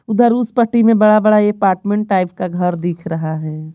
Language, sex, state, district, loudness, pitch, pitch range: Hindi, female, Bihar, Patna, -15 LUFS, 200 Hz, 175-215 Hz